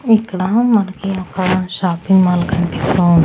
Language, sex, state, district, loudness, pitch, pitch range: Telugu, female, Andhra Pradesh, Annamaya, -15 LUFS, 185 Hz, 175-195 Hz